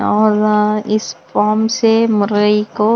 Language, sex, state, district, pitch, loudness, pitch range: Hindi, female, Bihar, West Champaran, 215 Hz, -14 LUFS, 210-220 Hz